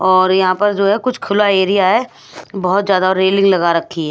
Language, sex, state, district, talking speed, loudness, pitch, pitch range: Hindi, female, Punjab, Pathankot, 220 wpm, -14 LUFS, 190 Hz, 185-200 Hz